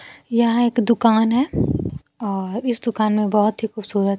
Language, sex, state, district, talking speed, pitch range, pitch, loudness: Hindi, female, Bihar, Kaimur, 155 wpm, 210-235 Hz, 225 Hz, -20 LUFS